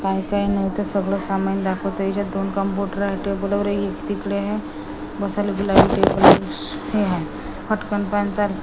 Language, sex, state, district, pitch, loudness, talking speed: Marathi, female, Maharashtra, Washim, 195 Hz, -21 LUFS, 155 wpm